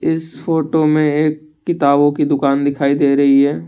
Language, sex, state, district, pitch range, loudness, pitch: Hindi, male, Assam, Kamrup Metropolitan, 140-155 Hz, -15 LUFS, 145 Hz